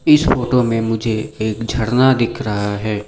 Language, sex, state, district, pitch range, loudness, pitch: Hindi, male, Sikkim, Gangtok, 110-125 Hz, -17 LUFS, 115 Hz